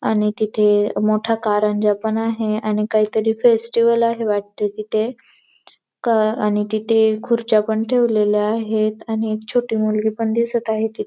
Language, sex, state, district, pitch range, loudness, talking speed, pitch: Marathi, female, Maharashtra, Dhule, 215-225 Hz, -19 LUFS, 150 wpm, 220 Hz